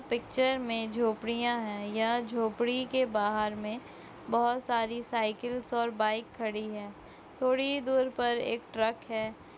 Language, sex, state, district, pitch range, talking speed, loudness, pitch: Hindi, female, West Bengal, Purulia, 220-245 Hz, 140 wpm, -31 LUFS, 235 Hz